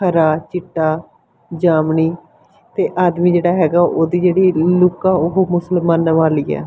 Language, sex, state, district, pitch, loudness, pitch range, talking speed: Punjabi, female, Punjab, Fazilka, 170 Hz, -15 LUFS, 160-180 Hz, 135 wpm